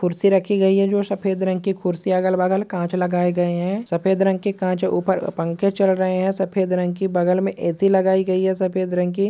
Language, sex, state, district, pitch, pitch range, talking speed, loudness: Hindi, male, West Bengal, Purulia, 190 Hz, 180-195 Hz, 240 wpm, -20 LUFS